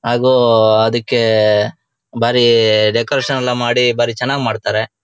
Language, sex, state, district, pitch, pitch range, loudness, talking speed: Kannada, male, Karnataka, Shimoga, 120 Hz, 110-125 Hz, -14 LUFS, 95 wpm